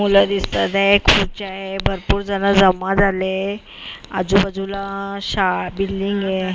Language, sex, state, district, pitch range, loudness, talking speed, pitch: Marathi, female, Maharashtra, Mumbai Suburban, 190-200 Hz, -18 LUFS, 130 wpm, 195 Hz